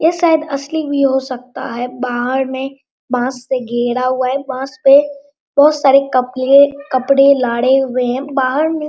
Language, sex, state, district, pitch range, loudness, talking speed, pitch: Hindi, male, Bihar, Araria, 255-285 Hz, -15 LUFS, 175 wpm, 265 Hz